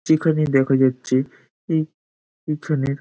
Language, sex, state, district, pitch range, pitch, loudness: Bengali, male, West Bengal, Dakshin Dinajpur, 130-155 Hz, 140 Hz, -20 LUFS